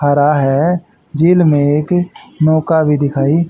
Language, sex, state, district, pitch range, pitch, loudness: Hindi, male, Haryana, Jhajjar, 145-170 Hz, 155 Hz, -13 LUFS